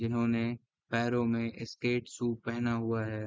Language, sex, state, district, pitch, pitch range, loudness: Hindi, male, Chhattisgarh, Raigarh, 115 Hz, 115-120 Hz, -33 LUFS